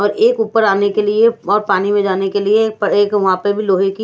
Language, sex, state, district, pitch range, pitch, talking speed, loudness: Hindi, female, Odisha, Nuapada, 200-215 Hz, 205 Hz, 265 wpm, -14 LUFS